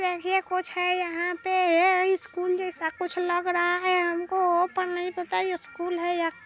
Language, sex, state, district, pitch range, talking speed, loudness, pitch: Hindi, female, Bihar, Vaishali, 350-365 Hz, 185 wpm, -26 LUFS, 360 Hz